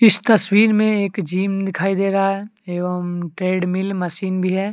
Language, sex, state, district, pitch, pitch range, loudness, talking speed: Hindi, male, Jharkhand, Deoghar, 195 Hz, 185-200 Hz, -19 LUFS, 165 wpm